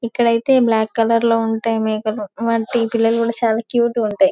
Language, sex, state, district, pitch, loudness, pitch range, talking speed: Telugu, female, Telangana, Karimnagar, 230 Hz, -17 LUFS, 225-235 Hz, 165 wpm